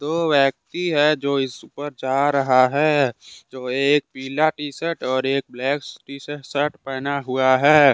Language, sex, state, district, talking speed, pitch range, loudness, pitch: Hindi, male, Jharkhand, Deoghar, 165 wpm, 130-145 Hz, -20 LUFS, 140 Hz